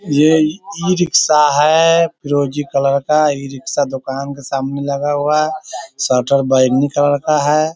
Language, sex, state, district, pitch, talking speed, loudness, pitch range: Hindi, male, Bihar, Sitamarhi, 145 Hz, 140 wpm, -15 LUFS, 140-155 Hz